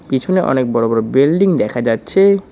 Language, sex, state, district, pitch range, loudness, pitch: Bengali, male, West Bengal, Cooch Behar, 120-190 Hz, -14 LUFS, 135 Hz